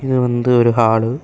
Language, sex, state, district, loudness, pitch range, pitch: Tamil, male, Tamil Nadu, Kanyakumari, -15 LUFS, 115-125 Hz, 120 Hz